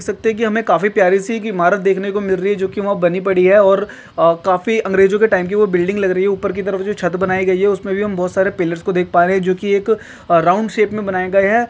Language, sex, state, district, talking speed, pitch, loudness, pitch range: Hindi, male, Maharashtra, Nagpur, 280 wpm, 195 Hz, -15 LUFS, 185-205 Hz